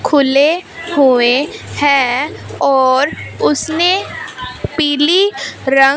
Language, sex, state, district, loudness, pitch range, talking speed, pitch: Hindi, female, Punjab, Fazilka, -13 LUFS, 270-330 Hz, 70 wpm, 285 Hz